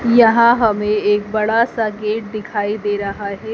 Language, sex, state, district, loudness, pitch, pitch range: Hindi, female, Madhya Pradesh, Dhar, -17 LUFS, 215 Hz, 205-225 Hz